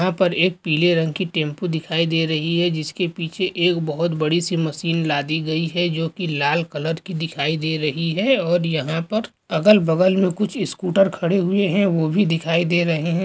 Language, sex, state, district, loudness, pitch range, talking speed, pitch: Bhojpuri, male, Bihar, Saran, -20 LUFS, 160-185 Hz, 215 wpm, 170 Hz